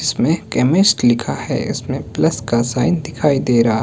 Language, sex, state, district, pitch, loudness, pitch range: Hindi, male, Himachal Pradesh, Shimla, 125 Hz, -17 LUFS, 120-150 Hz